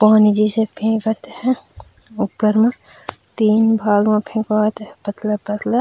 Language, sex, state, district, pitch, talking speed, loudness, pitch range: Chhattisgarhi, female, Chhattisgarh, Raigarh, 215 Hz, 125 wpm, -18 LUFS, 215-225 Hz